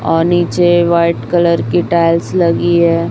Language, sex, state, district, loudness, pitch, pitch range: Hindi, female, Chhattisgarh, Raipur, -12 LUFS, 170 Hz, 165-175 Hz